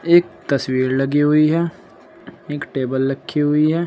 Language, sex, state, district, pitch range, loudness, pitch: Hindi, male, Uttar Pradesh, Saharanpur, 135-165 Hz, -18 LUFS, 145 Hz